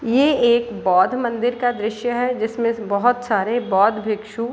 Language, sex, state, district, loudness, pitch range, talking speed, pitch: Hindi, female, Bihar, Gopalganj, -19 LUFS, 215-245 Hz, 170 wpm, 235 Hz